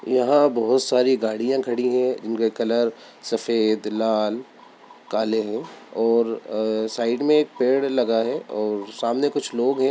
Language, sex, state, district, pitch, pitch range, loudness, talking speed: Hindi, male, Bihar, Sitamarhi, 115 Hz, 110-130 Hz, -22 LUFS, 145 wpm